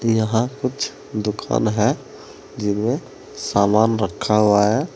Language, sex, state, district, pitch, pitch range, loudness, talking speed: Hindi, male, Uttar Pradesh, Saharanpur, 110 Hz, 105-115 Hz, -20 LUFS, 110 wpm